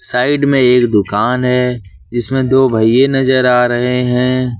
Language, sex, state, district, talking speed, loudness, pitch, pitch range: Hindi, male, Jharkhand, Ranchi, 155 wpm, -13 LUFS, 125 Hz, 120-130 Hz